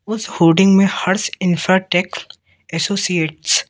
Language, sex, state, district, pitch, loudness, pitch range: Hindi, male, Madhya Pradesh, Katni, 185 Hz, -16 LUFS, 170-195 Hz